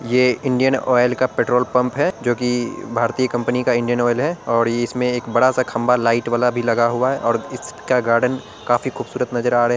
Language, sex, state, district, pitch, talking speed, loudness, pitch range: Angika, male, Bihar, Araria, 125 Hz, 220 wpm, -19 LUFS, 120-125 Hz